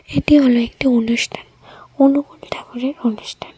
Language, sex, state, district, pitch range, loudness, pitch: Bengali, female, Tripura, West Tripura, 235-285 Hz, -16 LUFS, 255 Hz